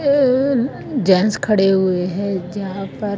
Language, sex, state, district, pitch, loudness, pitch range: Hindi, female, Haryana, Jhajjar, 200 Hz, -18 LUFS, 190-255 Hz